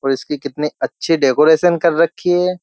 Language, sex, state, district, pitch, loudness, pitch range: Hindi, male, Uttar Pradesh, Jyotiba Phule Nagar, 160 Hz, -16 LUFS, 145-175 Hz